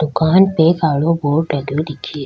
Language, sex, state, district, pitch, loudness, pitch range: Rajasthani, female, Rajasthan, Nagaur, 155 Hz, -15 LUFS, 145-165 Hz